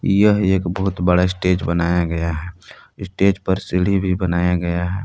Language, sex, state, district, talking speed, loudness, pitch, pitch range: Hindi, male, Jharkhand, Palamu, 190 wpm, -19 LUFS, 90 Hz, 90-95 Hz